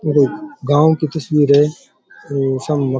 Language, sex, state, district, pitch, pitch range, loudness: Rajasthani, male, Rajasthan, Churu, 150 Hz, 140-155 Hz, -16 LUFS